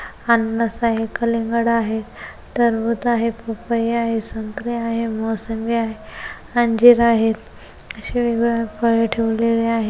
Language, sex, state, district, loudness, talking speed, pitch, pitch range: Marathi, female, Maharashtra, Pune, -19 LUFS, 120 wpm, 230 Hz, 225-235 Hz